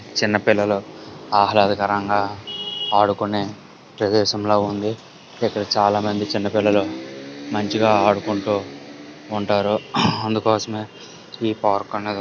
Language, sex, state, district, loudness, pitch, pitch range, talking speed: Telugu, male, Andhra Pradesh, Guntur, -20 LUFS, 105 Hz, 100-105 Hz, 90 wpm